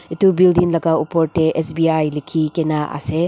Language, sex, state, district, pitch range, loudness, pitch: Nagamese, female, Nagaland, Dimapur, 155-165 Hz, -17 LUFS, 160 Hz